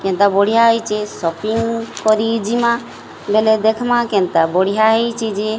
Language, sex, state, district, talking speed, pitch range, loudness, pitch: Odia, female, Odisha, Sambalpur, 140 wpm, 200-230 Hz, -16 LUFS, 220 Hz